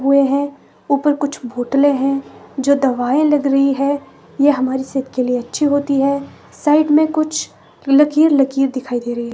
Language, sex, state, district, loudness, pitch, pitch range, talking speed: Hindi, female, Himachal Pradesh, Shimla, -16 LUFS, 275 Hz, 265-290 Hz, 165 wpm